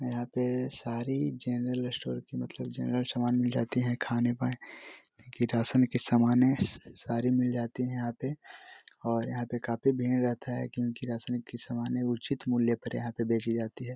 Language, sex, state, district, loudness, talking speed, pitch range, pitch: Hindi, male, Chhattisgarh, Korba, -31 LUFS, 195 wpm, 120-125 Hz, 120 Hz